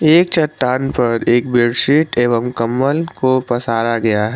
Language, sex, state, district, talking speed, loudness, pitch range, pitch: Hindi, male, Jharkhand, Garhwa, 150 wpm, -15 LUFS, 115-140 Hz, 125 Hz